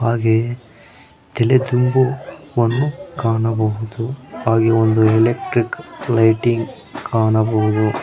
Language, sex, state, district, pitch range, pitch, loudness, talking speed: Kannada, male, Karnataka, Koppal, 110-125 Hz, 115 Hz, -17 LUFS, 60 wpm